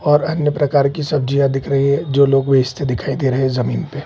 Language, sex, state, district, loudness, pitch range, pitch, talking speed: Hindi, male, Bihar, Gaya, -17 LUFS, 135-145 Hz, 140 Hz, 250 wpm